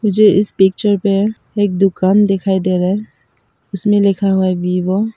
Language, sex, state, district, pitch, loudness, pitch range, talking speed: Hindi, female, Arunachal Pradesh, Papum Pare, 195 Hz, -14 LUFS, 190-205 Hz, 185 wpm